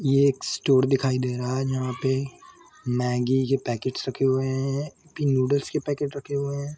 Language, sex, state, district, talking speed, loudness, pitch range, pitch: Hindi, male, Jharkhand, Sahebganj, 195 wpm, -25 LUFS, 130-140 Hz, 135 Hz